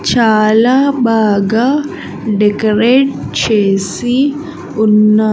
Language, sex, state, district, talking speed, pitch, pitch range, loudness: Telugu, female, Andhra Pradesh, Sri Satya Sai, 55 wpm, 225 Hz, 210-265 Hz, -12 LUFS